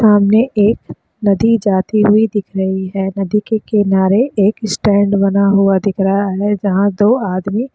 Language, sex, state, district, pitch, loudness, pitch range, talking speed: Hindi, female, Chhattisgarh, Sukma, 200 Hz, -14 LUFS, 195-215 Hz, 170 wpm